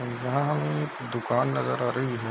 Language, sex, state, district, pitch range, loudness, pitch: Hindi, male, Bihar, Darbhanga, 75-125 Hz, -28 LUFS, 120 Hz